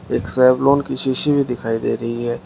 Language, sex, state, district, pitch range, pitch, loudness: Hindi, male, Uttar Pradesh, Shamli, 120-135 Hz, 130 Hz, -18 LUFS